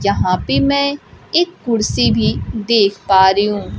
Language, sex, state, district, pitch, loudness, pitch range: Hindi, female, Bihar, Kaimur, 205 Hz, -15 LUFS, 195-270 Hz